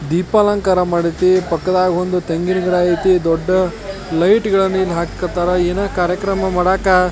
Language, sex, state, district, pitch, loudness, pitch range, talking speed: Kannada, male, Karnataka, Belgaum, 180 Hz, -16 LUFS, 175-190 Hz, 135 wpm